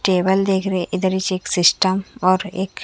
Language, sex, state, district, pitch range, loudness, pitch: Hindi, female, Haryana, Charkhi Dadri, 185-195 Hz, -19 LUFS, 190 Hz